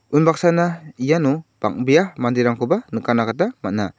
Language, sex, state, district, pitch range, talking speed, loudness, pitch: Garo, male, Meghalaya, South Garo Hills, 115-165 Hz, 105 wpm, -19 LUFS, 130 Hz